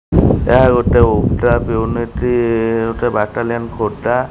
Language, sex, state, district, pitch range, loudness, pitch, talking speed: Odia, male, Odisha, Khordha, 110-120 Hz, -15 LUFS, 115 Hz, 100 wpm